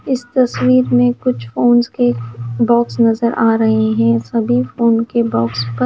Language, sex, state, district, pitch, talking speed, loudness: Hindi, female, Himachal Pradesh, Shimla, 220 Hz, 165 wpm, -15 LUFS